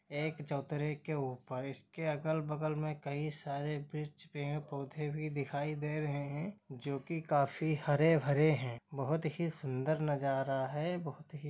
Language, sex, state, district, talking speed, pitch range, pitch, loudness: Hindi, male, Jharkhand, Sahebganj, 160 wpm, 140-155 Hz, 150 Hz, -37 LUFS